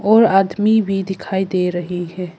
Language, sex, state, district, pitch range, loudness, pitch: Hindi, female, Arunachal Pradesh, Papum Pare, 180-200 Hz, -17 LUFS, 190 Hz